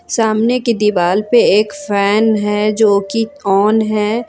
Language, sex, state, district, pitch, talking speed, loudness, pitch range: Hindi, female, Jharkhand, Ranchi, 215 Hz, 155 wpm, -14 LUFS, 200-225 Hz